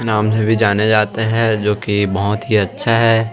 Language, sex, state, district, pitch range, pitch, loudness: Hindi, male, Chhattisgarh, Sukma, 105-115 Hz, 110 Hz, -15 LUFS